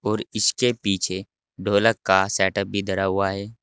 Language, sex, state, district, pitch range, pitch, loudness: Hindi, male, Uttar Pradesh, Saharanpur, 95-105 Hz, 100 Hz, -22 LUFS